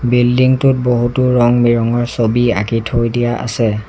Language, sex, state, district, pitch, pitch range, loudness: Assamese, male, Assam, Sonitpur, 120 Hz, 115-125 Hz, -14 LUFS